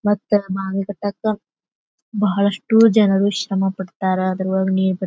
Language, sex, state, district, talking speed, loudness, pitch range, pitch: Kannada, female, Karnataka, Bijapur, 120 wpm, -19 LUFS, 190-205 Hz, 195 Hz